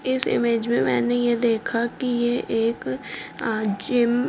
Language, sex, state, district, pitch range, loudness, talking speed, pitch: Hindi, female, Delhi, New Delhi, 225-245 Hz, -23 LUFS, 155 wpm, 235 Hz